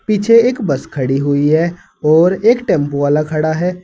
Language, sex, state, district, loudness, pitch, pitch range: Hindi, male, Uttar Pradesh, Saharanpur, -14 LUFS, 160 Hz, 145-200 Hz